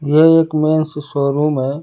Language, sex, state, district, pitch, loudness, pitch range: Hindi, male, Uttar Pradesh, Lucknow, 150 Hz, -15 LUFS, 145-155 Hz